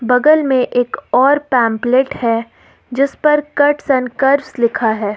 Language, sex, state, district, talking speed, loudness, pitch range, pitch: Hindi, female, Jharkhand, Ranchi, 150 wpm, -14 LUFS, 235-285 Hz, 255 Hz